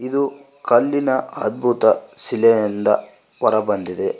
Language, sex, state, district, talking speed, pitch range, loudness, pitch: Kannada, male, Karnataka, Koppal, 70 wpm, 115-140 Hz, -17 LUFS, 130 Hz